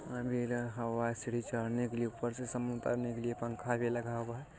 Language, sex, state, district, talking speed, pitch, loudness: Hindi, male, Bihar, Jamui, 235 wpm, 120 Hz, -37 LUFS